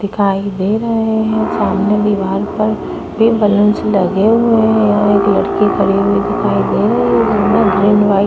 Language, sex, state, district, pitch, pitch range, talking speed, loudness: Hindi, female, Maharashtra, Chandrapur, 205 Hz, 200-220 Hz, 160 wpm, -13 LUFS